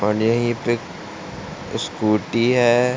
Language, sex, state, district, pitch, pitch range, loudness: Hindi, male, Uttar Pradesh, Ghazipur, 120 Hz, 110-120 Hz, -20 LUFS